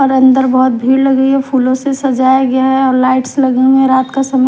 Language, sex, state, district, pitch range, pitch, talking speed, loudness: Hindi, female, Himachal Pradesh, Shimla, 260-270 Hz, 265 Hz, 225 wpm, -11 LUFS